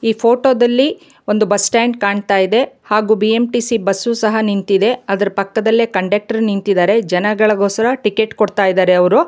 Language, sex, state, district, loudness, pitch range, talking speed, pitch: Kannada, female, Karnataka, Bangalore, -14 LUFS, 200-235 Hz, 140 wpm, 215 Hz